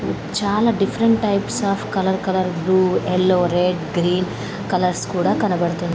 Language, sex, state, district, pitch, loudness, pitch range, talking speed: Telugu, female, Andhra Pradesh, Krishna, 185 Hz, -19 LUFS, 180-200 Hz, 130 wpm